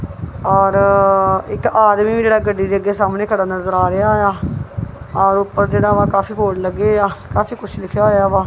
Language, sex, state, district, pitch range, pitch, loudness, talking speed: Punjabi, female, Punjab, Kapurthala, 190-205 Hz, 195 Hz, -15 LUFS, 190 wpm